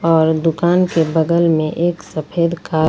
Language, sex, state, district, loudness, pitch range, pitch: Hindi, female, Jharkhand, Ranchi, -16 LUFS, 160-170 Hz, 165 Hz